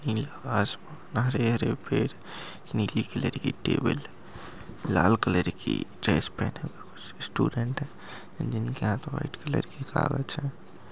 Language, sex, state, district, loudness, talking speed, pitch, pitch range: Angika, male, Bihar, Madhepura, -29 LUFS, 130 wpm, 120 Hz, 105-145 Hz